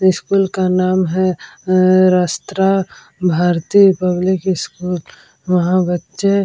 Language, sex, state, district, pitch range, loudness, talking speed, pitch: Hindi, female, Bihar, Vaishali, 180-190 Hz, -15 LUFS, 110 wpm, 185 Hz